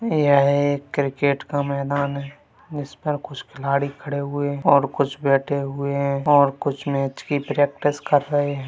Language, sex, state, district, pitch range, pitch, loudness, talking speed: Hindi, male, Bihar, Gaya, 140-145 Hz, 140 Hz, -21 LUFS, 185 wpm